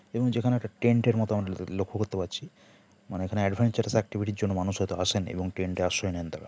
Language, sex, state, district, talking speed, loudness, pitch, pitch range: Bengali, male, West Bengal, Kolkata, 215 wpm, -29 LUFS, 100 Hz, 95-110 Hz